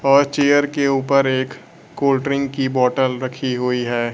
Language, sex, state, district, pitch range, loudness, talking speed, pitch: Hindi, male, Bihar, Kaimur, 130-140 Hz, -18 LUFS, 175 wpm, 135 Hz